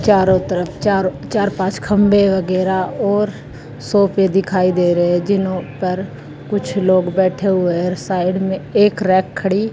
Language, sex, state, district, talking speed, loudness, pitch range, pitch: Hindi, female, Haryana, Jhajjar, 160 wpm, -16 LUFS, 180-200 Hz, 190 Hz